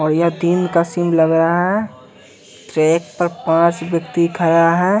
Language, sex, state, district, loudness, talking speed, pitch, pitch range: Hindi, male, Bihar, West Champaran, -16 LUFS, 170 wpm, 170 Hz, 165-175 Hz